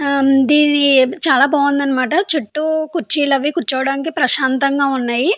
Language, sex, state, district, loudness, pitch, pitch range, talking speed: Telugu, female, Andhra Pradesh, Anantapur, -15 LUFS, 280 Hz, 270-305 Hz, 90 wpm